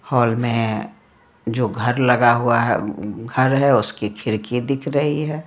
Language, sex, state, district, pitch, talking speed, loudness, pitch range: Hindi, female, Bihar, Patna, 120 Hz, 155 wpm, -19 LUFS, 110-130 Hz